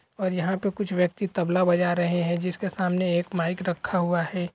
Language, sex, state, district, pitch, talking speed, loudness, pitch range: Hindi, male, Bihar, East Champaran, 180 Hz, 210 wpm, -25 LUFS, 175-185 Hz